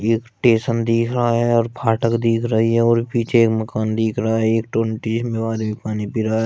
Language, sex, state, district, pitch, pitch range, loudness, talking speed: Hindi, male, Uttar Pradesh, Shamli, 115 Hz, 110-115 Hz, -19 LUFS, 215 wpm